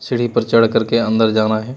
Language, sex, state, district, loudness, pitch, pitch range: Hindi, male, Bihar, Jamui, -15 LUFS, 115 Hz, 110-120 Hz